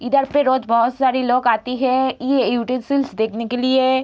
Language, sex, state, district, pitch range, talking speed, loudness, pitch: Hindi, female, Bihar, Gopalganj, 240-265 Hz, 195 wpm, -18 LUFS, 255 Hz